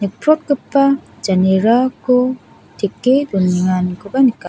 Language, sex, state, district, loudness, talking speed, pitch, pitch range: Garo, female, Meghalaya, South Garo Hills, -16 LUFS, 65 wpm, 250 Hz, 190-270 Hz